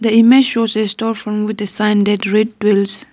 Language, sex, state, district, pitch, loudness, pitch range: English, female, Arunachal Pradesh, Lower Dibang Valley, 215 Hz, -14 LUFS, 205-225 Hz